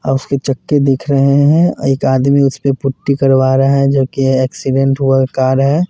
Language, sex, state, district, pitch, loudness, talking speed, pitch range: Hindi, male, Bihar, Katihar, 135 Hz, -13 LUFS, 185 wpm, 135-140 Hz